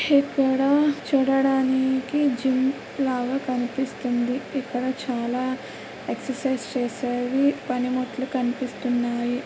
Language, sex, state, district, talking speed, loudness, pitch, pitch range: Telugu, female, Andhra Pradesh, Krishna, 70 wpm, -24 LUFS, 260 Hz, 250-270 Hz